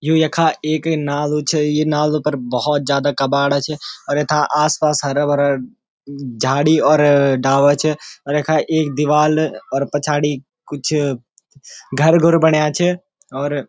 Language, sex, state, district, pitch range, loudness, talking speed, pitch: Garhwali, male, Uttarakhand, Uttarkashi, 140-155 Hz, -17 LUFS, 155 wpm, 150 Hz